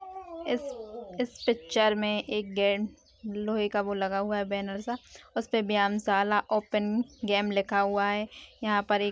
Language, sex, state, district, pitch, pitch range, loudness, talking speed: Hindi, female, Bihar, Kishanganj, 210 Hz, 200-225 Hz, -29 LUFS, 160 wpm